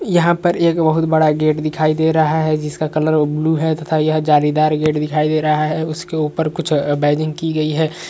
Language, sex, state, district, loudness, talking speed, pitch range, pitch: Hindi, male, Uttar Pradesh, Varanasi, -16 LUFS, 215 wpm, 155-160 Hz, 155 Hz